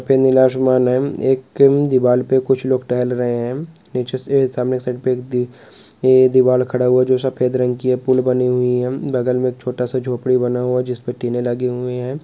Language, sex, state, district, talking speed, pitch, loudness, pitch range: Hindi, male, West Bengal, Dakshin Dinajpur, 215 wpm, 125 Hz, -17 LUFS, 125-130 Hz